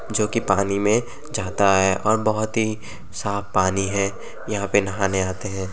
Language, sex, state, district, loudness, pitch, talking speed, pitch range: Bhojpuri, male, Uttar Pradesh, Gorakhpur, -22 LUFS, 100 Hz, 170 wpm, 95-110 Hz